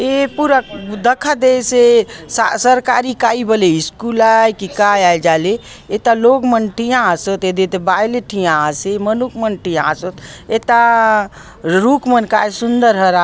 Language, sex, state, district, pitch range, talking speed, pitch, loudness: Halbi, female, Chhattisgarh, Bastar, 190-245 Hz, 145 wpm, 225 Hz, -14 LUFS